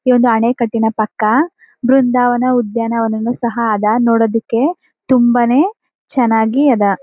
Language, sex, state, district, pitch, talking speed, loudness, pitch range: Kannada, female, Karnataka, Chamarajanagar, 240 Hz, 100 wpm, -14 LUFS, 225-255 Hz